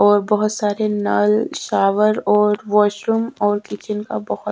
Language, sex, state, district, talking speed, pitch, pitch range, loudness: Hindi, female, Haryana, Charkhi Dadri, 160 wpm, 210 Hz, 205-210 Hz, -18 LUFS